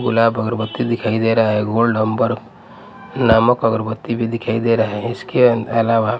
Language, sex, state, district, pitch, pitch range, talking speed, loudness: Hindi, male, Punjab, Pathankot, 115 Hz, 110-120 Hz, 165 wpm, -17 LUFS